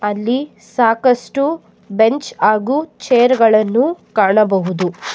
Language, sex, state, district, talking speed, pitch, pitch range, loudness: Kannada, female, Karnataka, Bangalore, 80 wpm, 230 Hz, 210-260 Hz, -15 LUFS